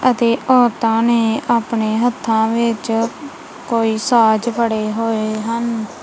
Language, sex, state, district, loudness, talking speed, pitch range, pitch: Punjabi, female, Punjab, Kapurthala, -17 LUFS, 110 wpm, 225-235 Hz, 230 Hz